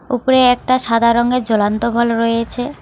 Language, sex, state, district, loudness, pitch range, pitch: Bengali, female, West Bengal, Alipurduar, -15 LUFS, 230-250 Hz, 235 Hz